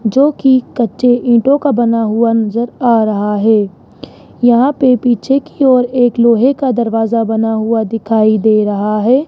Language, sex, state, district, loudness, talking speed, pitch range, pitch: Hindi, male, Rajasthan, Jaipur, -12 LUFS, 170 wpm, 220-255 Hz, 235 Hz